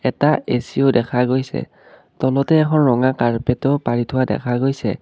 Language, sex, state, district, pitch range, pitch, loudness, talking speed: Assamese, male, Assam, Kamrup Metropolitan, 120-135 Hz, 130 Hz, -18 LUFS, 155 wpm